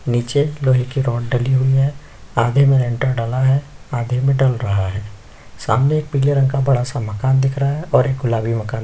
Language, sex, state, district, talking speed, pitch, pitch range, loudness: Hindi, male, Chhattisgarh, Sukma, 205 wpm, 130 Hz, 120-135 Hz, -18 LUFS